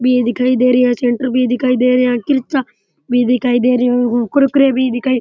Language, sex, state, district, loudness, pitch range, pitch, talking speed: Rajasthani, male, Rajasthan, Churu, -14 LUFS, 245-255 Hz, 250 Hz, 240 wpm